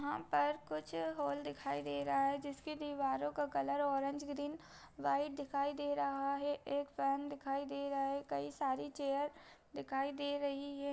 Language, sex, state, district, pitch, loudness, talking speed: Hindi, female, Bihar, Darbhanga, 280 Hz, -39 LUFS, 175 wpm